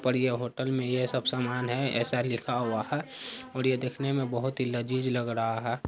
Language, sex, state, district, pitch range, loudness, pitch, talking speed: Hindi, male, Bihar, Araria, 120-130 Hz, -30 LUFS, 125 Hz, 225 wpm